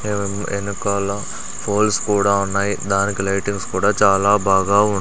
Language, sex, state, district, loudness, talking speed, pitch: Telugu, male, Andhra Pradesh, Sri Satya Sai, -19 LUFS, 130 wpm, 100 Hz